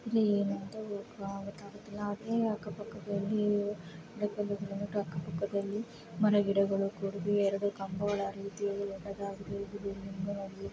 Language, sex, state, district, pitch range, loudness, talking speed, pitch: Kannada, female, Karnataka, Raichur, 195-205 Hz, -34 LUFS, 95 wpm, 200 Hz